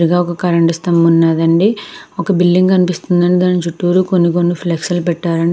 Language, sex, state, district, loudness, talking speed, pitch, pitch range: Telugu, female, Andhra Pradesh, Krishna, -13 LUFS, 195 wpm, 175 Hz, 170-180 Hz